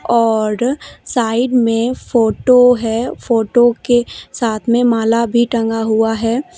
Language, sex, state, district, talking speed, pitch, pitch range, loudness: Hindi, female, Jharkhand, Deoghar, 125 wpm, 235 Hz, 225-245 Hz, -14 LUFS